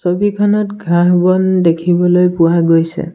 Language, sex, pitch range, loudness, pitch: Assamese, male, 170-190 Hz, -12 LUFS, 180 Hz